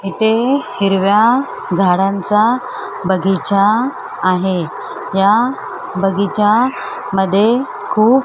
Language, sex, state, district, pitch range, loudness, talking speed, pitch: Marathi, male, Maharashtra, Mumbai Suburban, 195-230 Hz, -15 LUFS, 75 wpm, 200 Hz